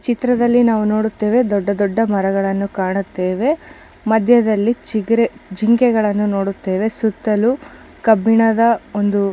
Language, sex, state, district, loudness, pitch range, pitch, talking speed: Kannada, female, Karnataka, Chamarajanagar, -16 LUFS, 200-230 Hz, 220 Hz, 95 wpm